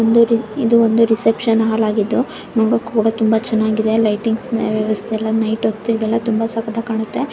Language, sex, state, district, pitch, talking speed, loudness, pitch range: Kannada, female, Karnataka, Chamarajanagar, 225 Hz, 115 wpm, -17 LUFS, 220-230 Hz